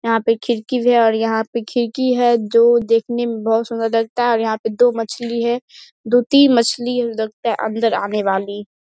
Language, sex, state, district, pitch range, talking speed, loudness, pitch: Hindi, female, Bihar, Saharsa, 225-240 Hz, 195 wpm, -17 LUFS, 230 Hz